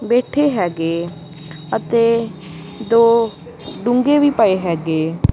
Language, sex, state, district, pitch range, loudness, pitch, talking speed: Punjabi, female, Punjab, Kapurthala, 160-230 Hz, -16 LUFS, 185 Hz, 90 wpm